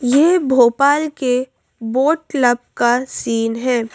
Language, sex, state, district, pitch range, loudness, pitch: Hindi, female, Madhya Pradesh, Bhopal, 240-285 Hz, -16 LUFS, 250 Hz